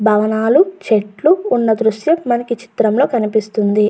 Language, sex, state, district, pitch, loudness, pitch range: Telugu, female, Andhra Pradesh, Guntur, 220 Hz, -15 LUFS, 215-245 Hz